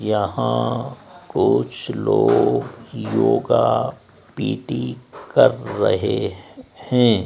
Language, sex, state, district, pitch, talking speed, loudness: Hindi, male, Rajasthan, Jaipur, 105 Hz, 65 wpm, -20 LUFS